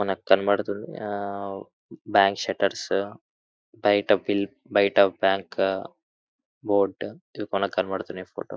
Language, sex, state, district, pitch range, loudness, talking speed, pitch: Telugu, male, Andhra Pradesh, Anantapur, 95-100 Hz, -25 LUFS, 110 wpm, 100 Hz